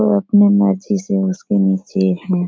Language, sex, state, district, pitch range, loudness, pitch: Hindi, female, Bihar, Jahanabad, 175-200 Hz, -16 LUFS, 195 Hz